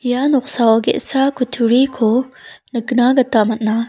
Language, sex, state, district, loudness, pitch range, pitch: Garo, female, Meghalaya, South Garo Hills, -15 LUFS, 230-265 Hz, 250 Hz